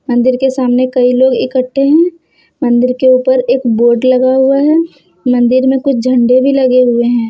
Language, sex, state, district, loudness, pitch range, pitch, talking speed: Hindi, female, Jharkhand, Deoghar, -10 LUFS, 245-265 Hz, 255 Hz, 190 wpm